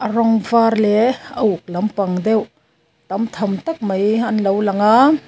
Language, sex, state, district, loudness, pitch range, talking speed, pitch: Mizo, female, Mizoram, Aizawl, -17 LUFS, 195-225 Hz, 170 wpm, 210 Hz